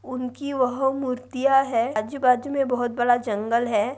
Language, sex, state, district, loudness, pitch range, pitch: Hindi, female, Maharashtra, Nagpur, -23 LUFS, 240-270 Hz, 250 Hz